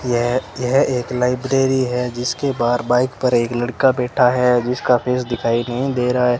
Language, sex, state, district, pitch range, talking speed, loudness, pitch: Hindi, male, Rajasthan, Bikaner, 120-125 Hz, 180 wpm, -18 LUFS, 125 Hz